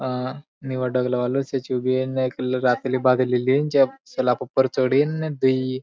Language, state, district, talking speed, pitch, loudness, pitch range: Bhili, Maharashtra, Dhule, 135 wpm, 130 Hz, -22 LUFS, 125-135 Hz